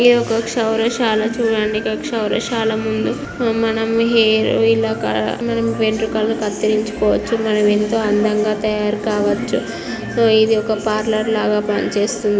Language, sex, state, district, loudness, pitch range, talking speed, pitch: Telugu, female, Andhra Pradesh, Guntur, -17 LUFS, 215-225 Hz, 90 wpm, 220 Hz